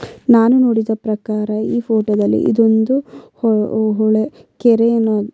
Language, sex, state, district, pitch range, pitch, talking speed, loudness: Kannada, female, Karnataka, Bellary, 215-230 Hz, 220 Hz, 110 wpm, -15 LUFS